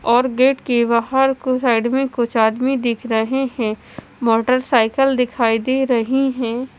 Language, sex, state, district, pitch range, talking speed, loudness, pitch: Hindi, female, Chandigarh, Chandigarh, 230-265 Hz, 140 wpm, -18 LUFS, 245 Hz